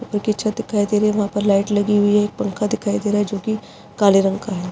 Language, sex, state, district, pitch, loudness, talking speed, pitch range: Hindi, female, Uttarakhand, Uttarkashi, 205 Hz, -19 LUFS, 305 wpm, 205-210 Hz